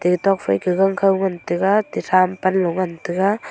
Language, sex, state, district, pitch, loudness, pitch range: Wancho, female, Arunachal Pradesh, Longding, 185 Hz, -19 LUFS, 180-195 Hz